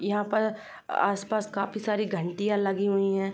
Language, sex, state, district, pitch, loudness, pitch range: Hindi, female, Uttar Pradesh, Jyotiba Phule Nagar, 200 Hz, -28 LUFS, 195-210 Hz